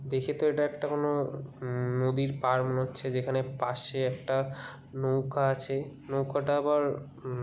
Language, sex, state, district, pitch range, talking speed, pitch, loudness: Bengali, male, West Bengal, Kolkata, 130-140 Hz, 135 wpm, 135 Hz, -30 LUFS